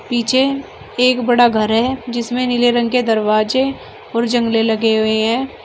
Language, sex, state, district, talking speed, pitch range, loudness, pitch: Hindi, female, Uttar Pradesh, Shamli, 160 wpm, 225-250 Hz, -16 LUFS, 240 Hz